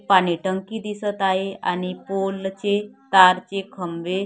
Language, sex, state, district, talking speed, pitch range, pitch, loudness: Marathi, female, Maharashtra, Gondia, 125 wpm, 185-200 Hz, 195 Hz, -22 LUFS